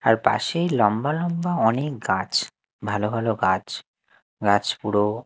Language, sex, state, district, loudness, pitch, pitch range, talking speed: Bengali, male, Chhattisgarh, Raipur, -23 LUFS, 115 Hz, 105-140 Hz, 125 wpm